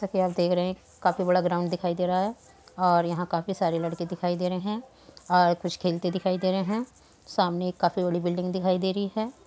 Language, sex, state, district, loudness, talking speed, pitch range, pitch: Hindi, female, Uttar Pradesh, Muzaffarnagar, -27 LUFS, 235 wpm, 175-190 Hz, 180 Hz